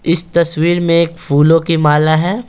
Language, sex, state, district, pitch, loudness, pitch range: Hindi, male, Bihar, Patna, 165 Hz, -13 LUFS, 155-170 Hz